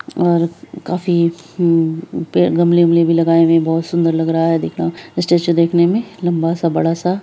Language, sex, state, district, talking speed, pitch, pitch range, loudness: Hindi, female, Bihar, Araria, 175 wpm, 170 Hz, 165-175 Hz, -15 LUFS